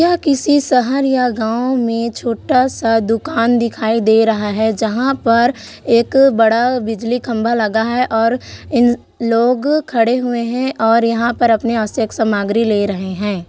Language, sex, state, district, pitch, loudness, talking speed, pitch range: Hindi, female, Chhattisgarh, Korba, 235 Hz, -15 LUFS, 160 wpm, 225-250 Hz